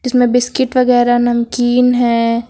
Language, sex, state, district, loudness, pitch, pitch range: Hindi, female, Uttar Pradesh, Lucknow, -13 LUFS, 245 Hz, 240-250 Hz